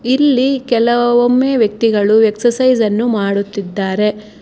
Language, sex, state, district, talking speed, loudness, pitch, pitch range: Kannada, female, Karnataka, Bangalore, 80 wpm, -14 LUFS, 230 Hz, 210-250 Hz